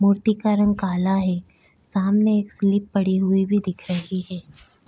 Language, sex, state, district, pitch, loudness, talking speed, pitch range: Hindi, female, Goa, North and South Goa, 195 Hz, -21 LUFS, 170 wpm, 185-205 Hz